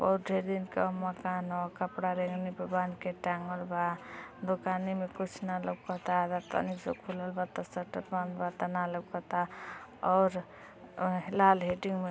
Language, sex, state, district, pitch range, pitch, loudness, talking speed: Hindi, female, Uttar Pradesh, Deoria, 180-185 Hz, 180 Hz, -34 LUFS, 175 wpm